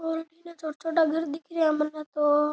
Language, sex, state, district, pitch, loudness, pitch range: Rajasthani, male, Rajasthan, Nagaur, 315 Hz, -27 LUFS, 300-325 Hz